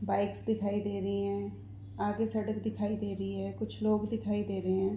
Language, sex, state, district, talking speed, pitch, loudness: Hindi, female, Chhattisgarh, Korba, 205 wpm, 200 Hz, -34 LUFS